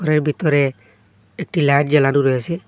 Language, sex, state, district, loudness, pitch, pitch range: Bengali, male, Assam, Hailakandi, -17 LUFS, 145 Hz, 130-155 Hz